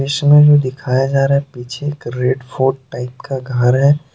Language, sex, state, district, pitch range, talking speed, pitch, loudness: Hindi, male, Jharkhand, Deoghar, 125-140 Hz, 200 wpm, 135 Hz, -15 LUFS